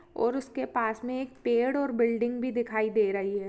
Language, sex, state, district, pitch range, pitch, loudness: Hindi, female, Chhattisgarh, Kabirdham, 220-255 Hz, 235 Hz, -29 LUFS